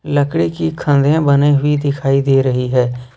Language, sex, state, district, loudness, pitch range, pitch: Hindi, male, Jharkhand, Ranchi, -14 LUFS, 125-145 Hz, 140 Hz